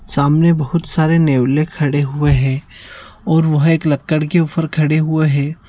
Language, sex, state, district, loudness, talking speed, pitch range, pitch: Hindi, male, Rajasthan, Nagaur, -15 LUFS, 170 wpm, 145-160 Hz, 155 Hz